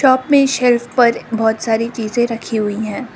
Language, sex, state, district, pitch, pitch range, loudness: Hindi, female, Arunachal Pradesh, Lower Dibang Valley, 235 Hz, 225-250 Hz, -16 LUFS